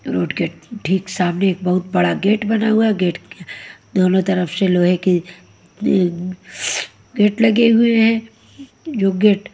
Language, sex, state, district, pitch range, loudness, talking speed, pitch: Hindi, female, Haryana, Jhajjar, 180-220 Hz, -17 LUFS, 150 wpm, 195 Hz